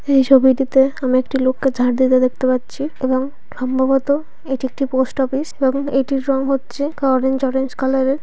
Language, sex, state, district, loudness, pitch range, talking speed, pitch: Bengali, female, West Bengal, North 24 Parganas, -17 LUFS, 260-275 Hz, 170 wpm, 265 Hz